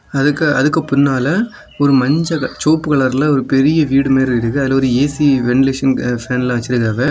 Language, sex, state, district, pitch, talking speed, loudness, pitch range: Tamil, male, Tamil Nadu, Kanyakumari, 135 Hz, 145 wpm, -14 LUFS, 130-150 Hz